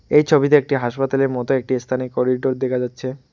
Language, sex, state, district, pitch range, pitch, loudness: Bengali, male, West Bengal, Alipurduar, 125-135 Hz, 130 Hz, -19 LUFS